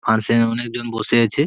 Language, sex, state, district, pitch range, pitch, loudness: Bengali, male, West Bengal, Purulia, 115-120 Hz, 115 Hz, -19 LUFS